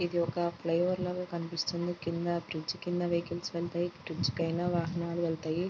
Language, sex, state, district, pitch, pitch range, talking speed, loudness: Telugu, female, Andhra Pradesh, Guntur, 170 Hz, 170-175 Hz, 160 wpm, -33 LUFS